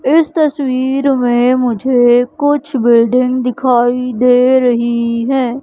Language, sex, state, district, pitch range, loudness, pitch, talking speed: Hindi, female, Madhya Pradesh, Katni, 240-265 Hz, -12 LUFS, 250 Hz, 105 wpm